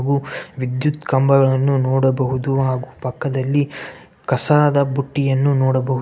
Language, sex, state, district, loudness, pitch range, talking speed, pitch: Kannada, male, Karnataka, Bellary, -18 LUFS, 130-140 Hz, 90 wpm, 135 Hz